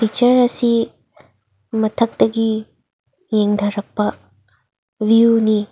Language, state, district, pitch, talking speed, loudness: Manipuri, Manipur, Imphal West, 215 Hz, 50 wpm, -17 LUFS